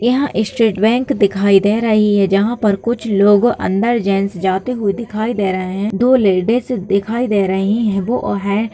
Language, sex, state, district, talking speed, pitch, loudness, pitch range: Hindi, female, Bihar, Jamui, 190 wpm, 210 Hz, -15 LUFS, 200-235 Hz